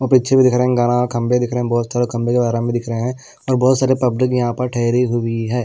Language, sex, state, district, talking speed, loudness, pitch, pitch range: Hindi, male, Delhi, New Delhi, 275 wpm, -17 LUFS, 120 Hz, 120-125 Hz